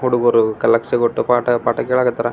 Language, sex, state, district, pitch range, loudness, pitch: Kannada, male, Karnataka, Belgaum, 115-125 Hz, -16 LUFS, 120 Hz